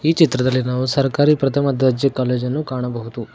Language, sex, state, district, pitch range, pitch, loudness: Kannada, male, Karnataka, Koppal, 125-140 Hz, 130 Hz, -18 LUFS